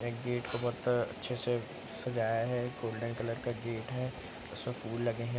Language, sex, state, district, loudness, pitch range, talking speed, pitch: Hindi, male, Bihar, Araria, -36 LUFS, 115-125 Hz, 190 wpm, 120 Hz